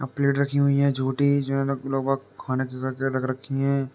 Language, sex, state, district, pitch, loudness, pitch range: Hindi, male, Uttar Pradesh, Jalaun, 135 Hz, -24 LUFS, 130-140 Hz